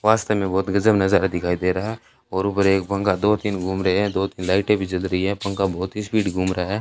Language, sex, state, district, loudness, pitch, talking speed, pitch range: Hindi, male, Rajasthan, Bikaner, -21 LUFS, 95 Hz, 275 wpm, 95-105 Hz